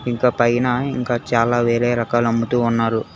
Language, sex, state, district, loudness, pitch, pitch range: Telugu, male, Telangana, Hyderabad, -18 LUFS, 120 Hz, 115-125 Hz